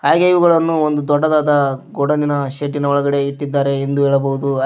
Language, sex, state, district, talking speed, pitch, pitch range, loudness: Kannada, male, Karnataka, Koppal, 155 wpm, 145 Hz, 140-150 Hz, -16 LUFS